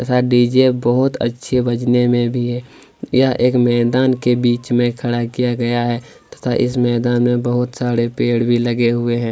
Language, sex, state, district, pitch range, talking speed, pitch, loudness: Hindi, male, Chhattisgarh, Kabirdham, 120-125 Hz, 185 wpm, 120 Hz, -16 LUFS